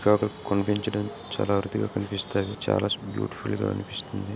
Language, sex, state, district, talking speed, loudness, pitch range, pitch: Telugu, male, Andhra Pradesh, Krishna, 110 wpm, -28 LUFS, 100-105 Hz, 100 Hz